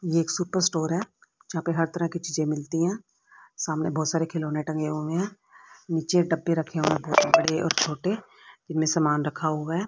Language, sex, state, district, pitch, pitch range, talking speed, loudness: Hindi, female, Haryana, Rohtak, 165 Hz, 155-175 Hz, 200 wpm, -26 LUFS